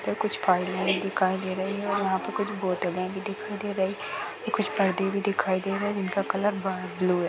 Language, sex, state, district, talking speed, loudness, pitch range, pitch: Hindi, female, Bihar, Sitamarhi, 245 wpm, -28 LUFS, 185-200 Hz, 195 Hz